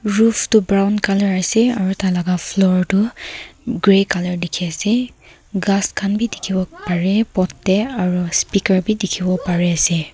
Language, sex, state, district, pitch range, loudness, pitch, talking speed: Nagamese, female, Nagaland, Kohima, 180-210 Hz, -17 LUFS, 195 Hz, 170 wpm